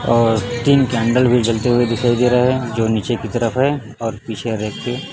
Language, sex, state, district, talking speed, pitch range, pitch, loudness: Hindi, male, Chhattisgarh, Raipur, 220 wpm, 115-125 Hz, 120 Hz, -17 LUFS